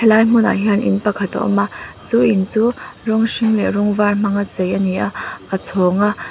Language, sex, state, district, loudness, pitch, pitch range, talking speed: Mizo, female, Mizoram, Aizawl, -17 LUFS, 205 Hz, 200-220 Hz, 230 wpm